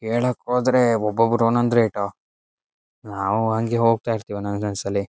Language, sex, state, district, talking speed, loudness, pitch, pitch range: Kannada, male, Karnataka, Shimoga, 140 wpm, -21 LUFS, 115 Hz, 105-120 Hz